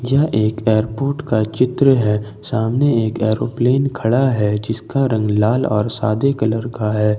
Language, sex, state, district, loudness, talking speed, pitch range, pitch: Hindi, male, Jharkhand, Ranchi, -17 LUFS, 160 wpm, 110-130 Hz, 110 Hz